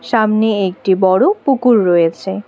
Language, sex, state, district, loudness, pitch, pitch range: Bengali, female, West Bengal, Alipurduar, -13 LUFS, 205 Hz, 185-230 Hz